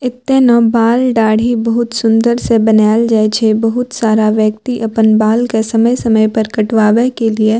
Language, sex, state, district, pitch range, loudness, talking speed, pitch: Maithili, female, Bihar, Purnia, 220-235 Hz, -12 LUFS, 165 wpm, 225 Hz